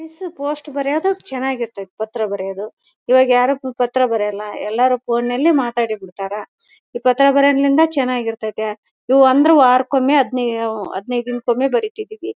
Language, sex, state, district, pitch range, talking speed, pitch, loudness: Kannada, female, Karnataka, Bellary, 225-280 Hz, 140 wpm, 250 Hz, -17 LUFS